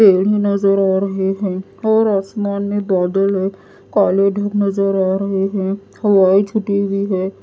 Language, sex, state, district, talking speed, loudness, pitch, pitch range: Hindi, female, Odisha, Nuapada, 170 wpm, -17 LUFS, 195 Hz, 195-200 Hz